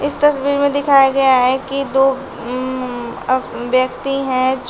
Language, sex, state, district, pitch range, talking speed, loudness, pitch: Hindi, female, Uttar Pradesh, Shamli, 255-275 Hz, 155 wpm, -16 LUFS, 265 Hz